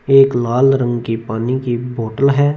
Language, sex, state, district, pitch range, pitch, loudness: Hindi, male, Punjab, Fazilka, 120-135 Hz, 125 Hz, -16 LUFS